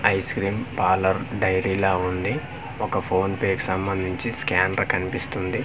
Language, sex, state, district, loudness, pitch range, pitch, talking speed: Telugu, male, Andhra Pradesh, Manyam, -24 LUFS, 95-115 Hz, 95 Hz, 140 wpm